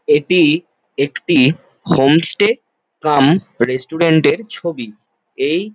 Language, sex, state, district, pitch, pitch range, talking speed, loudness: Bengali, male, West Bengal, Jalpaiguri, 160 Hz, 140-180 Hz, 95 wpm, -15 LUFS